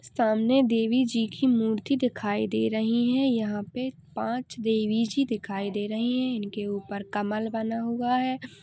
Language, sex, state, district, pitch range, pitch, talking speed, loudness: Hindi, female, Uttar Pradesh, Jalaun, 210-250 Hz, 225 Hz, 165 wpm, -27 LUFS